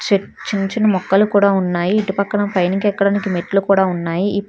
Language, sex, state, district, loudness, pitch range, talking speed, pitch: Telugu, female, Telangana, Hyderabad, -17 LUFS, 185-200 Hz, 160 wpm, 195 Hz